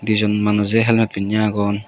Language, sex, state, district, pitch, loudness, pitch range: Chakma, male, Tripura, West Tripura, 105 Hz, -18 LUFS, 105-110 Hz